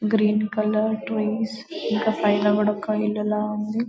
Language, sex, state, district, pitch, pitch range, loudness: Telugu, female, Telangana, Karimnagar, 215 Hz, 210-220 Hz, -23 LUFS